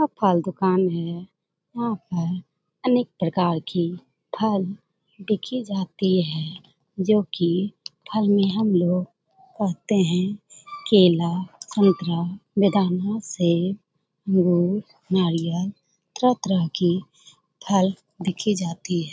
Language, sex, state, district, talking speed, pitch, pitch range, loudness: Hindi, female, Bihar, Jamui, 100 wpm, 185 Hz, 175-200 Hz, -23 LUFS